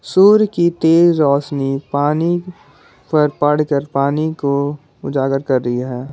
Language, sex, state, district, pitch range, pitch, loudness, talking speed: Hindi, male, Jharkhand, Garhwa, 135-160 Hz, 145 Hz, -16 LUFS, 135 wpm